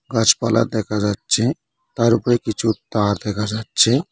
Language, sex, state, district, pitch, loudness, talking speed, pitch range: Bengali, male, West Bengal, Cooch Behar, 110 Hz, -19 LUFS, 130 wpm, 105-115 Hz